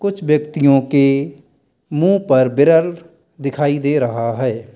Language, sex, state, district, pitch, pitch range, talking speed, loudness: Hindi, male, Uttar Pradesh, Lalitpur, 145 Hz, 135-165 Hz, 125 wpm, -16 LUFS